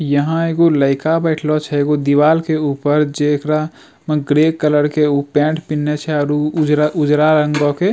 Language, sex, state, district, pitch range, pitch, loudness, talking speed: Angika, male, Bihar, Bhagalpur, 145-155 Hz, 150 Hz, -15 LUFS, 180 wpm